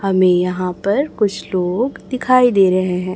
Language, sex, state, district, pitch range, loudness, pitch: Hindi, male, Chhattisgarh, Raipur, 185-245 Hz, -16 LUFS, 190 Hz